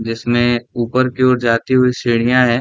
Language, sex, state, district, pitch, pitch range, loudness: Hindi, male, Bihar, Saran, 120 Hz, 120-125 Hz, -15 LUFS